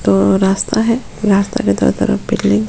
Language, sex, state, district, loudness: Hindi, female, Goa, North and South Goa, -15 LUFS